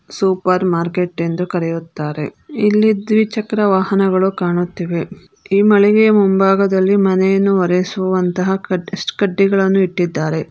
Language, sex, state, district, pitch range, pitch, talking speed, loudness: Kannada, female, Karnataka, Bangalore, 180-195 Hz, 190 Hz, 90 wpm, -15 LUFS